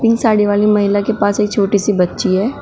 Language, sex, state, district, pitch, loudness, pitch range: Hindi, female, Uttar Pradesh, Shamli, 205 Hz, -14 LUFS, 200-215 Hz